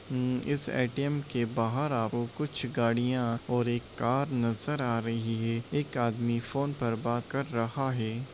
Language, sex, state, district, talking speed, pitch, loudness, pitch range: Hindi, male, Jharkhand, Sahebganj, 185 wpm, 120 Hz, -31 LUFS, 115-135 Hz